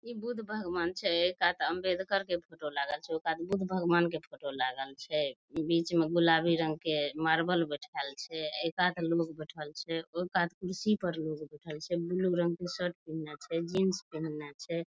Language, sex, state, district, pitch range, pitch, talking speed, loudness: Maithili, female, Bihar, Madhepura, 155-180 Hz, 165 Hz, 195 wpm, -33 LUFS